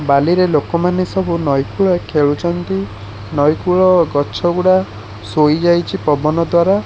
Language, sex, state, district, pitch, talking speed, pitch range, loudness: Odia, male, Odisha, Khordha, 170 Hz, 115 wpm, 145-180 Hz, -15 LUFS